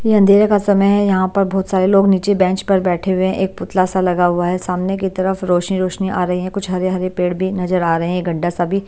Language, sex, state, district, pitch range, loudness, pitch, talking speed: Hindi, female, Bihar, Patna, 180-195 Hz, -16 LUFS, 185 Hz, 285 wpm